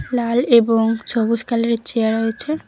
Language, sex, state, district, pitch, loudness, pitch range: Bengali, female, West Bengal, Cooch Behar, 230 Hz, -17 LUFS, 225-240 Hz